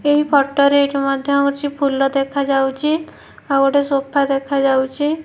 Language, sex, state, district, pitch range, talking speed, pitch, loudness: Odia, female, Odisha, Nuapada, 275-285 Hz, 135 wpm, 280 Hz, -17 LUFS